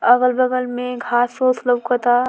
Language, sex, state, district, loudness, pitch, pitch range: Bhojpuri, female, Bihar, Muzaffarpur, -18 LUFS, 245 Hz, 245-250 Hz